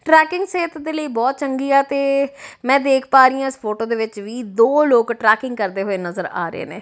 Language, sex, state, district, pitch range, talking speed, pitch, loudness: Punjabi, female, Punjab, Kapurthala, 225-280 Hz, 240 wpm, 265 Hz, -18 LUFS